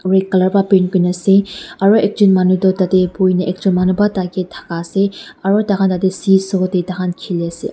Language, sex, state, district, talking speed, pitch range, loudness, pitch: Nagamese, female, Nagaland, Dimapur, 200 wpm, 185-195 Hz, -15 LUFS, 190 Hz